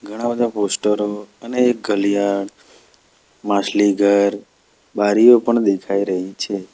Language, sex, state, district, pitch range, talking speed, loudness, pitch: Gujarati, male, Gujarat, Valsad, 100-110 Hz, 105 wpm, -18 LUFS, 105 Hz